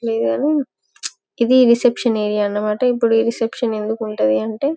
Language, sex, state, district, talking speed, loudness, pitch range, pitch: Telugu, female, Telangana, Karimnagar, 175 wpm, -17 LUFS, 210-245 Hz, 230 Hz